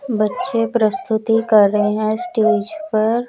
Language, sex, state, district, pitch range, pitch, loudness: Hindi, female, Chandigarh, Chandigarh, 215-235 Hz, 220 Hz, -17 LUFS